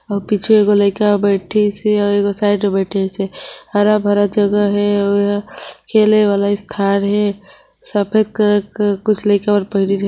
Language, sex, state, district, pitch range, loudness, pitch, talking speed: Chhattisgarhi, female, Chhattisgarh, Sarguja, 200-210 Hz, -15 LUFS, 205 Hz, 155 wpm